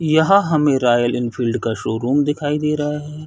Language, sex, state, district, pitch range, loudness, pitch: Hindi, male, Chhattisgarh, Bilaspur, 120-150 Hz, -18 LUFS, 145 Hz